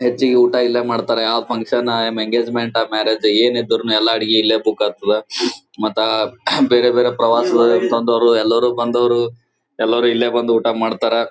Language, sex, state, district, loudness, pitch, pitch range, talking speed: Kannada, male, Karnataka, Gulbarga, -16 LUFS, 115 Hz, 110-120 Hz, 155 wpm